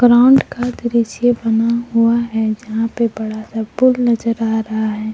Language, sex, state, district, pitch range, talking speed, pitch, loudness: Hindi, female, Jharkhand, Palamu, 220-240 Hz, 175 wpm, 230 Hz, -16 LUFS